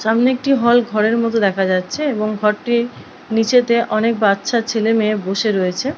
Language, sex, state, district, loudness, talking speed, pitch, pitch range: Bengali, female, West Bengal, Paschim Medinipur, -17 LUFS, 150 wpm, 225 Hz, 210-240 Hz